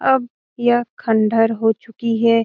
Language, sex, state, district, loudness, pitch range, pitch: Hindi, female, Bihar, Jamui, -18 LUFS, 225-240 Hz, 230 Hz